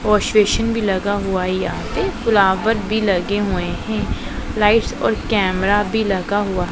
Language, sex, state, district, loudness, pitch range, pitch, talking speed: Hindi, female, Punjab, Pathankot, -18 LUFS, 190-215 Hz, 205 Hz, 180 wpm